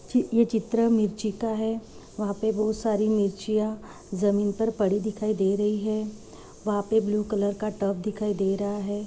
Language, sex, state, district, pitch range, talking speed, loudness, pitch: Hindi, female, Chhattisgarh, Jashpur, 205-220 Hz, 185 wpm, -26 LUFS, 210 Hz